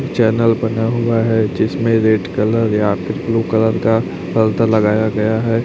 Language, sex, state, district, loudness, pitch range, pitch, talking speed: Hindi, male, Chhattisgarh, Raipur, -16 LUFS, 110-115 Hz, 110 Hz, 160 wpm